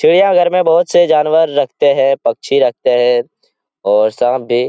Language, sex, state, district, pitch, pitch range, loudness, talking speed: Hindi, male, Bihar, Jahanabad, 145 Hz, 125-170 Hz, -12 LUFS, 190 wpm